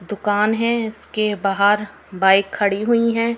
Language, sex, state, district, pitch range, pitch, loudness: Hindi, female, Haryana, Rohtak, 200-225 Hz, 210 Hz, -18 LUFS